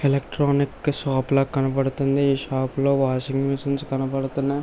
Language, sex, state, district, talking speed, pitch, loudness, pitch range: Telugu, male, Andhra Pradesh, Visakhapatnam, 130 wpm, 135 Hz, -23 LUFS, 135-140 Hz